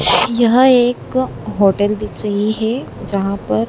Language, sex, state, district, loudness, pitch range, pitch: Hindi, female, Madhya Pradesh, Dhar, -15 LUFS, 200-245 Hz, 210 Hz